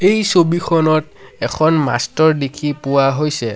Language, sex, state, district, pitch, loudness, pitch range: Assamese, male, Assam, Sonitpur, 155 Hz, -16 LUFS, 140-165 Hz